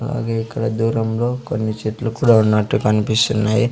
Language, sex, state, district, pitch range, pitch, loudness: Telugu, male, Andhra Pradesh, Sri Satya Sai, 110-120 Hz, 115 Hz, -18 LUFS